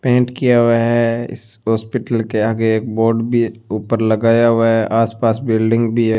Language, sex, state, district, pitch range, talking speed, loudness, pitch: Hindi, male, Rajasthan, Bikaner, 110-115 Hz, 195 wpm, -16 LUFS, 115 Hz